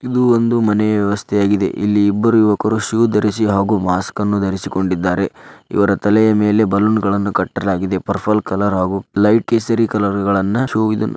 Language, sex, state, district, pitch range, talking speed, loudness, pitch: Kannada, male, Karnataka, Dharwad, 100-110 Hz, 155 wpm, -16 LUFS, 105 Hz